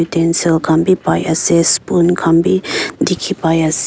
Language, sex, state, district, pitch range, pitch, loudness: Nagamese, female, Nagaland, Kohima, 160-175 Hz, 165 Hz, -14 LUFS